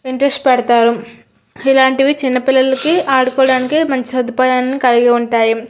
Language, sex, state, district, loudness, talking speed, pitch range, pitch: Telugu, female, Andhra Pradesh, Srikakulam, -13 LUFS, 95 wpm, 245-270 Hz, 260 Hz